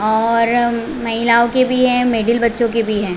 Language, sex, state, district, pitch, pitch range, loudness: Hindi, female, Chhattisgarh, Raigarh, 235 Hz, 230-240 Hz, -15 LUFS